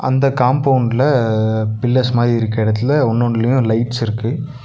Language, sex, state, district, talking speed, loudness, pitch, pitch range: Tamil, male, Tamil Nadu, Nilgiris, 130 wpm, -16 LUFS, 120 Hz, 115-130 Hz